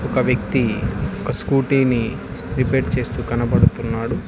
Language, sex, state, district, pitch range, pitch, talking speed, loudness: Telugu, male, Telangana, Hyderabad, 115-130 Hz, 120 Hz, 85 wpm, -20 LUFS